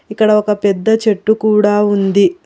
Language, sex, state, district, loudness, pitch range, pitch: Telugu, female, Telangana, Hyderabad, -13 LUFS, 205-220 Hz, 210 Hz